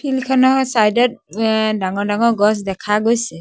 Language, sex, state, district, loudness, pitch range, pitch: Assamese, male, Assam, Sonitpur, -16 LUFS, 205-245 Hz, 220 Hz